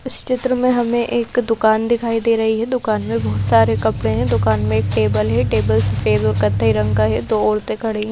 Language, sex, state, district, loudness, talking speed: Hindi, female, Madhya Pradesh, Bhopal, -17 LUFS, 245 wpm